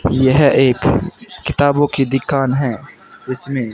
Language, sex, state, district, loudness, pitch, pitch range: Hindi, male, Rajasthan, Bikaner, -15 LUFS, 135 Hz, 130-150 Hz